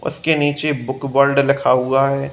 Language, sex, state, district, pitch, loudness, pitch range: Hindi, male, Bihar, Gopalganj, 140 Hz, -17 LUFS, 135-145 Hz